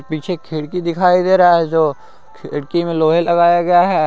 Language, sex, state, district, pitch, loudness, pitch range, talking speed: Hindi, male, Jharkhand, Garhwa, 170 Hz, -15 LUFS, 155-175 Hz, 190 wpm